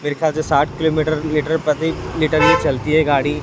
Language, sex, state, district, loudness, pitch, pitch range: Hindi, male, Chhattisgarh, Raipur, -17 LUFS, 155 Hz, 150-155 Hz